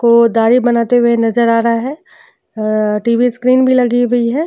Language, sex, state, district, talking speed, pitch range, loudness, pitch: Hindi, female, Uttar Pradesh, Jyotiba Phule Nagar, 190 wpm, 230-250 Hz, -13 LUFS, 235 Hz